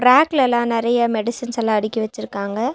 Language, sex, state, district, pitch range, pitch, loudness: Tamil, female, Tamil Nadu, Nilgiris, 220-245 Hz, 235 Hz, -19 LUFS